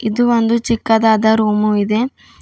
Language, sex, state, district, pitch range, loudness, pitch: Kannada, female, Karnataka, Bidar, 215-235 Hz, -15 LUFS, 225 Hz